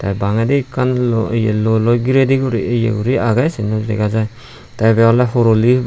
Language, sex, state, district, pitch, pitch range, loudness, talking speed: Chakma, male, Tripura, Unakoti, 115 Hz, 110-125 Hz, -15 LUFS, 205 wpm